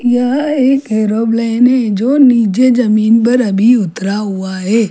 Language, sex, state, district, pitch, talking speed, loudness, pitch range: Hindi, female, Chhattisgarh, Jashpur, 230 Hz, 145 wpm, -12 LUFS, 215-250 Hz